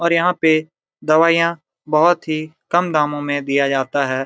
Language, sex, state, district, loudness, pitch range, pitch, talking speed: Hindi, male, Jharkhand, Jamtara, -17 LUFS, 145-170 Hz, 155 Hz, 170 wpm